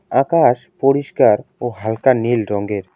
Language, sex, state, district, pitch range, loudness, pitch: Bengali, male, West Bengal, Alipurduar, 110-135 Hz, -17 LUFS, 120 Hz